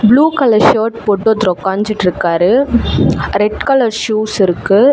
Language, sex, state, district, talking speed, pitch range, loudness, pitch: Tamil, female, Tamil Nadu, Chennai, 120 wpm, 195-235 Hz, -13 LUFS, 215 Hz